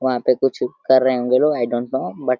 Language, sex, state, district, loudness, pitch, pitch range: Hindi, male, Uttar Pradesh, Deoria, -19 LUFS, 130 Hz, 120-130 Hz